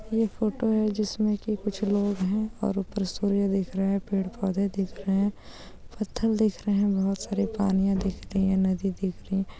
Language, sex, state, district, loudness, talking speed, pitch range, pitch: Hindi, female, West Bengal, Purulia, -27 LUFS, 205 wpm, 195-210 Hz, 200 Hz